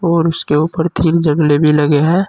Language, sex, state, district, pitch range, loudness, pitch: Hindi, male, Uttar Pradesh, Saharanpur, 150-170 Hz, -13 LUFS, 160 Hz